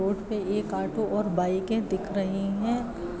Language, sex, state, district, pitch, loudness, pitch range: Hindi, female, Bihar, Sitamarhi, 200 Hz, -28 LUFS, 190-215 Hz